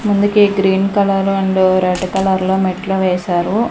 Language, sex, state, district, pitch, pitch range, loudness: Telugu, female, Andhra Pradesh, Manyam, 190 Hz, 185-195 Hz, -15 LUFS